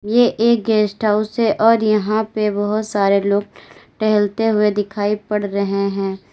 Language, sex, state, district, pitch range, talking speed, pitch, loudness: Hindi, female, Uttar Pradesh, Lalitpur, 205-220 Hz, 160 wpm, 210 Hz, -17 LUFS